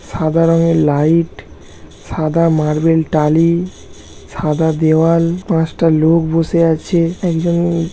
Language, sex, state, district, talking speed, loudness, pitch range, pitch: Bengali, male, West Bengal, North 24 Parganas, 100 wpm, -14 LUFS, 150-165 Hz, 160 Hz